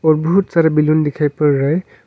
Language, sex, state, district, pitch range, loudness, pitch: Hindi, male, Arunachal Pradesh, Longding, 150-165 Hz, -15 LUFS, 155 Hz